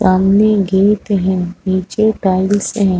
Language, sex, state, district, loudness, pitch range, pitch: Hindi, female, Chhattisgarh, Raigarh, -14 LUFS, 185-205 Hz, 195 Hz